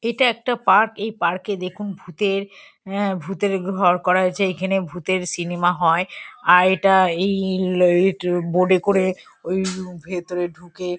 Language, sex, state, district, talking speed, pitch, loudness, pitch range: Bengali, female, West Bengal, Kolkata, 135 wpm, 185 Hz, -20 LUFS, 180-195 Hz